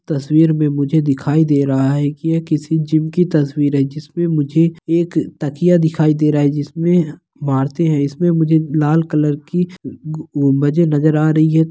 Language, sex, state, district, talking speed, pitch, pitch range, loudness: Hindi, male, Bihar, Begusarai, 190 wpm, 155 Hz, 145-165 Hz, -16 LUFS